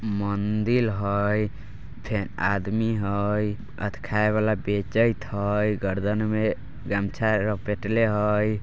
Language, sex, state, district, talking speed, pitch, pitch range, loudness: Bajjika, male, Bihar, Vaishali, 95 wpm, 105 Hz, 100-110 Hz, -25 LUFS